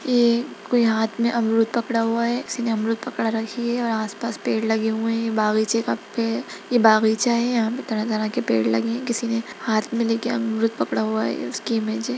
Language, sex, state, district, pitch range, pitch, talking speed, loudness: Hindi, female, Bihar, Gaya, 220-235 Hz, 225 Hz, 230 wpm, -22 LUFS